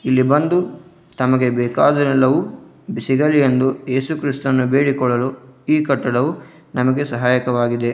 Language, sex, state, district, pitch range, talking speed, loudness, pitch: Kannada, male, Karnataka, Dharwad, 125-145 Hz, 100 wpm, -17 LUFS, 130 Hz